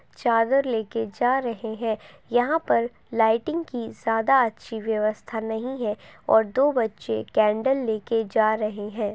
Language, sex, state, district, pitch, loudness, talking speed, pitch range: Hindi, female, Uttar Pradesh, Budaun, 225 Hz, -24 LUFS, 145 wpm, 220-245 Hz